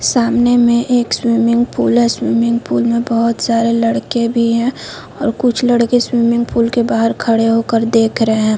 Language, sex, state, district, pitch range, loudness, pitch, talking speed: Hindi, female, Chhattisgarh, Korba, 230-240 Hz, -14 LUFS, 235 Hz, 180 wpm